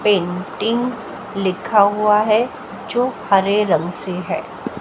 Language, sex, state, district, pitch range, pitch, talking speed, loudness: Hindi, female, Haryana, Jhajjar, 190-215 Hz, 205 Hz, 110 wpm, -18 LUFS